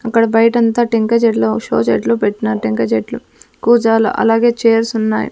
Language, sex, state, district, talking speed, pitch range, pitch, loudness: Telugu, female, Andhra Pradesh, Sri Satya Sai, 145 wpm, 205-230 Hz, 225 Hz, -14 LUFS